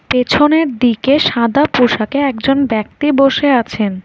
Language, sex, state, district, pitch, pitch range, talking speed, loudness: Bengali, female, West Bengal, Alipurduar, 260 Hz, 235-285 Hz, 120 wpm, -13 LUFS